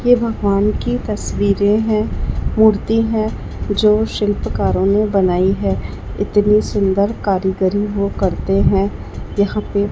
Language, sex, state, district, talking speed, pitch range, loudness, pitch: Hindi, male, Chhattisgarh, Raipur, 120 wpm, 195-215 Hz, -17 LUFS, 205 Hz